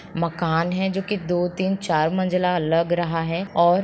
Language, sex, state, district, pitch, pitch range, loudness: Hindi, female, Bihar, Sitamarhi, 175 Hz, 165-185 Hz, -22 LUFS